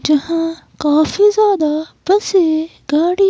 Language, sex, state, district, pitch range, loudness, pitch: Hindi, female, Himachal Pradesh, Shimla, 305-390 Hz, -15 LUFS, 330 Hz